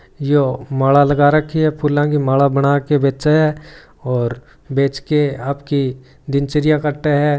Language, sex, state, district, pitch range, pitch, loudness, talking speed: Marwari, male, Rajasthan, Churu, 135-150 Hz, 145 Hz, -16 LUFS, 160 wpm